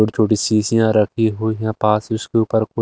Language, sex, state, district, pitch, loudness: Hindi, male, Delhi, New Delhi, 110 Hz, -18 LUFS